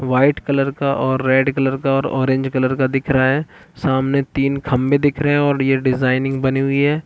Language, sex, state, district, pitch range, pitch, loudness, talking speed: Hindi, male, Chhattisgarh, Balrampur, 130-140 Hz, 135 Hz, -17 LUFS, 220 wpm